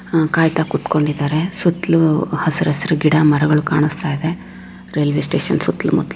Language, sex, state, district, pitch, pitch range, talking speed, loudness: Kannada, female, Karnataka, Raichur, 155 Hz, 150-160 Hz, 145 wpm, -16 LUFS